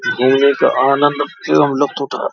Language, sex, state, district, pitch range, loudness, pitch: Hindi, male, Uttar Pradesh, Jalaun, 140-145 Hz, -14 LUFS, 140 Hz